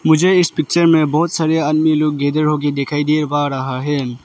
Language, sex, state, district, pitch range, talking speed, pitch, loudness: Hindi, male, Arunachal Pradesh, Lower Dibang Valley, 145-160 Hz, 210 wpm, 150 Hz, -16 LUFS